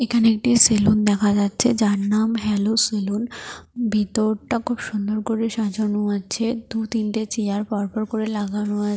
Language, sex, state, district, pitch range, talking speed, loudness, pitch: Bengali, female, Jharkhand, Jamtara, 205-225 Hz, 155 wpm, -21 LUFS, 215 Hz